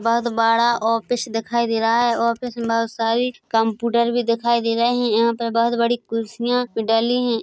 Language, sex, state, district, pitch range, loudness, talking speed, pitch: Hindi, female, Chhattisgarh, Bilaspur, 230-235 Hz, -20 LUFS, 200 wpm, 235 Hz